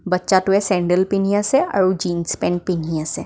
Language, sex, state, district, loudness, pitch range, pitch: Assamese, female, Assam, Kamrup Metropolitan, -19 LUFS, 175-195 Hz, 185 Hz